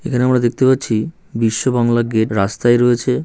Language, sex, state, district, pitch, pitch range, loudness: Bengali, male, West Bengal, North 24 Parganas, 120 Hz, 115-125 Hz, -16 LUFS